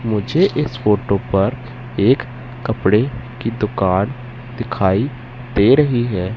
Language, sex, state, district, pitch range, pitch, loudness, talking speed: Hindi, male, Madhya Pradesh, Katni, 105-125 Hz, 120 Hz, -18 LUFS, 115 wpm